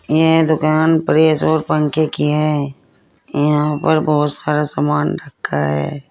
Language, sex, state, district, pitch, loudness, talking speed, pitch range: Hindi, female, Uttar Pradesh, Saharanpur, 150 Hz, -16 LUFS, 135 wpm, 145-155 Hz